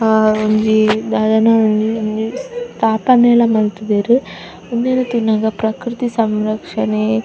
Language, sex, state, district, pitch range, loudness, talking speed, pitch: Tulu, female, Karnataka, Dakshina Kannada, 215-235 Hz, -15 LUFS, 90 wpm, 220 Hz